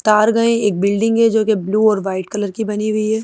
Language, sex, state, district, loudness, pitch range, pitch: Hindi, female, Madhya Pradesh, Bhopal, -16 LUFS, 205-220 Hz, 215 Hz